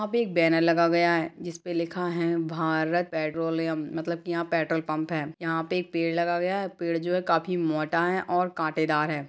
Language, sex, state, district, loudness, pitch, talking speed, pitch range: Hindi, female, Chhattisgarh, Sarguja, -27 LUFS, 170 Hz, 220 wpm, 160-175 Hz